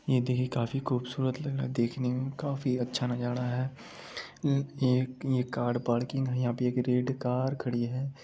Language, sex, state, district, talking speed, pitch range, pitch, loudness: Hindi, male, Bihar, Supaul, 170 wpm, 125-135 Hz, 125 Hz, -31 LUFS